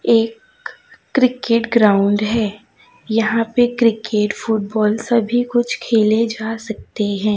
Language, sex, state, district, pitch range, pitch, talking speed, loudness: Hindi, female, Chhattisgarh, Raipur, 215-235 Hz, 225 Hz, 115 wpm, -17 LUFS